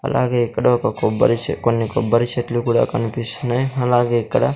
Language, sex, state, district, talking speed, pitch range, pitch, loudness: Telugu, male, Andhra Pradesh, Sri Satya Sai, 160 wpm, 115-120 Hz, 120 Hz, -19 LUFS